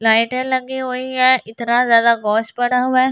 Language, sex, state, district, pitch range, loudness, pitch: Hindi, female, Delhi, New Delhi, 230-255 Hz, -16 LUFS, 250 Hz